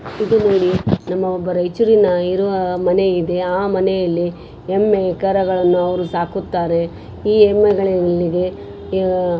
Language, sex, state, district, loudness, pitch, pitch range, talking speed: Kannada, female, Karnataka, Raichur, -17 LUFS, 185 Hz, 175-195 Hz, 115 wpm